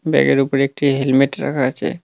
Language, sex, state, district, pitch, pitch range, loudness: Bengali, male, West Bengal, Cooch Behar, 135 Hz, 130-140 Hz, -17 LUFS